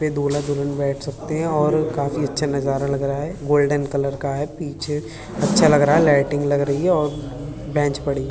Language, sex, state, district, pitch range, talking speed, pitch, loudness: Hindi, male, Uttar Pradesh, Budaun, 140-150 Hz, 215 wpm, 145 Hz, -20 LUFS